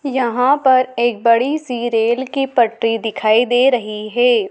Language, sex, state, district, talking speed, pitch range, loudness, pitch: Hindi, female, Madhya Pradesh, Dhar, 160 wpm, 230-260 Hz, -16 LUFS, 240 Hz